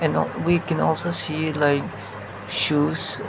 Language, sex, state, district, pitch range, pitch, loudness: English, male, Nagaland, Dimapur, 105-160 Hz, 150 Hz, -19 LUFS